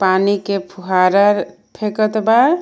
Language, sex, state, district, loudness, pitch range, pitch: Bhojpuri, female, Jharkhand, Palamu, -16 LUFS, 190-215 Hz, 200 Hz